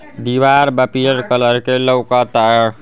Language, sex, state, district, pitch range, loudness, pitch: Bhojpuri, male, Uttar Pradesh, Ghazipur, 120-130 Hz, -13 LUFS, 125 Hz